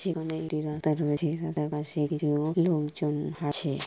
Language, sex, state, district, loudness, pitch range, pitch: Bengali, female, West Bengal, Purulia, -29 LUFS, 150-160 Hz, 155 Hz